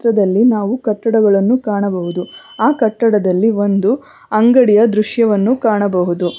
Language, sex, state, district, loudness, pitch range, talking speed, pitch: Kannada, female, Karnataka, Bangalore, -14 LUFS, 200-235 Hz, 95 wpm, 215 Hz